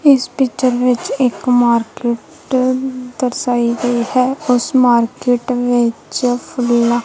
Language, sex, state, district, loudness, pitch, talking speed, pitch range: Punjabi, female, Punjab, Kapurthala, -16 LUFS, 245 Hz, 100 wpm, 240-255 Hz